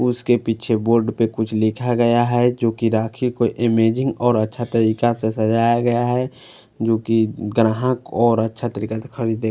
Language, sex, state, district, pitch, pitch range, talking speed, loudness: Hindi, male, Punjab, Fazilka, 115 Hz, 110-120 Hz, 170 wpm, -19 LUFS